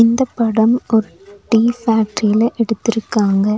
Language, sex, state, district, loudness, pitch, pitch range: Tamil, female, Tamil Nadu, Nilgiris, -16 LUFS, 225 Hz, 210-230 Hz